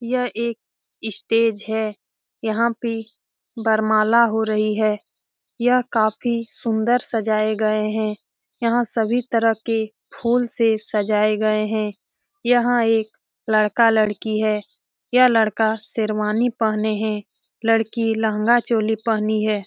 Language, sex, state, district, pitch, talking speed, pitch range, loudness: Hindi, male, Bihar, Jamui, 220 Hz, 115 wpm, 215-235 Hz, -20 LUFS